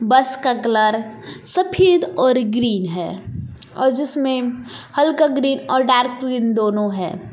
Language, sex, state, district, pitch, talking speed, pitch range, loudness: Hindi, female, Jharkhand, Palamu, 250 Hz, 130 wpm, 220-270 Hz, -18 LUFS